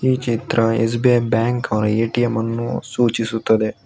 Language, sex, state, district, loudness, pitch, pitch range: Kannada, male, Karnataka, Bangalore, -19 LUFS, 115 Hz, 115-120 Hz